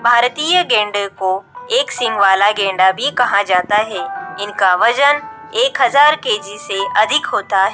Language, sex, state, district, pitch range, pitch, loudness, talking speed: Hindi, female, Bihar, Katihar, 195-305 Hz, 220 Hz, -15 LUFS, 145 wpm